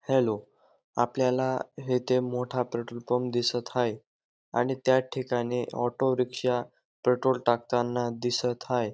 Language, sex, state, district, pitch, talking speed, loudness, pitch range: Marathi, male, Maharashtra, Dhule, 125 Hz, 115 wpm, -28 LUFS, 120-130 Hz